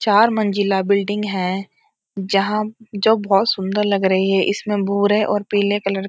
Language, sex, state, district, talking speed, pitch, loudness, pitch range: Hindi, female, Uttarakhand, Uttarkashi, 165 wpm, 205 Hz, -18 LUFS, 195-210 Hz